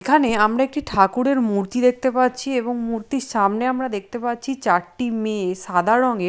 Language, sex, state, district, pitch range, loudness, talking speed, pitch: Bengali, female, Odisha, Nuapada, 205-255 Hz, -20 LUFS, 160 wpm, 240 Hz